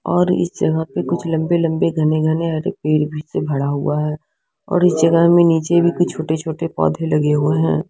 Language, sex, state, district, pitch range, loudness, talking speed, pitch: Hindi, female, Odisha, Sambalpur, 150-170 Hz, -17 LUFS, 220 wpm, 160 Hz